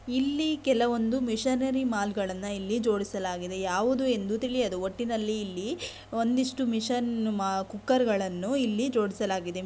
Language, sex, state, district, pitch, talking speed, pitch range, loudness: Kannada, female, Karnataka, Belgaum, 225 Hz, 105 wpm, 200-255 Hz, -29 LUFS